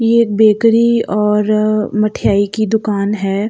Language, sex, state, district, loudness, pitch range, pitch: Hindi, female, Uttar Pradesh, Jalaun, -14 LUFS, 210-220 Hz, 215 Hz